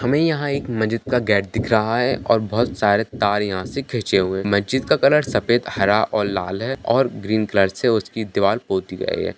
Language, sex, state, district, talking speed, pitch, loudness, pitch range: Hindi, male, Bihar, Jahanabad, 225 wpm, 110 Hz, -20 LUFS, 100-125 Hz